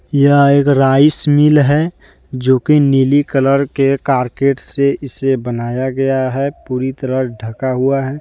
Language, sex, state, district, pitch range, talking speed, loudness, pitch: Hindi, male, Jharkhand, Deoghar, 130-140 Hz, 155 wpm, -14 LUFS, 135 Hz